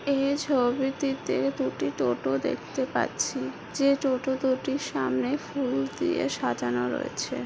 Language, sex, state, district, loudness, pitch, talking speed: Bengali, female, West Bengal, Jhargram, -28 LUFS, 265 Hz, 115 wpm